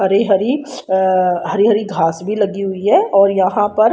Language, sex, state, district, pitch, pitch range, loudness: Hindi, female, Haryana, Rohtak, 200 Hz, 190-215 Hz, -15 LUFS